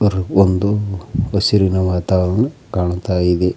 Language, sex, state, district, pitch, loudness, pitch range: Kannada, male, Karnataka, Koppal, 95 Hz, -17 LUFS, 90-105 Hz